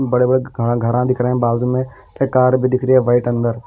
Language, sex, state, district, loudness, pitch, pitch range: Hindi, male, Bihar, West Champaran, -16 LUFS, 125 Hz, 120-130 Hz